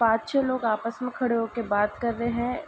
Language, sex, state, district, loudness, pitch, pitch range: Hindi, female, Uttar Pradesh, Ghazipur, -26 LUFS, 235 Hz, 225-250 Hz